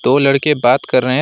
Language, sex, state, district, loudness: Hindi, male, West Bengal, Alipurduar, -13 LUFS